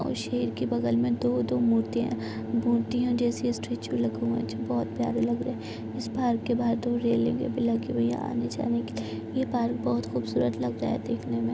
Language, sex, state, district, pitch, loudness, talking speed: Hindi, female, Uttar Pradesh, Gorakhpur, 120 Hz, -28 LUFS, 220 wpm